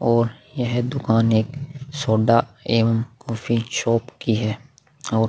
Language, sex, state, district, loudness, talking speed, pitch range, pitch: Hindi, male, Bihar, Vaishali, -22 LUFS, 125 wpm, 115-125 Hz, 115 Hz